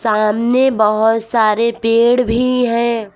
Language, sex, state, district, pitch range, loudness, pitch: Hindi, female, Uttar Pradesh, Lucknow, 220-240 Hz, -14 LUFS, 230 Hz